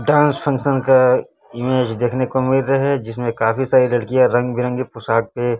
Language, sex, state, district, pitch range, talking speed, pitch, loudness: Hindi, male, Chhattisgarh, Raipur, 120-135 Hz, 180 wpm, 125 Hz, -17 LUFS